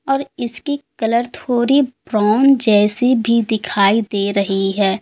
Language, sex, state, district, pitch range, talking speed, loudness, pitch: Hindi, female, Uttar Pradesh, Lalitpur, 205-260 Hz, 130 wpm, -16 LUFS, 230 Hz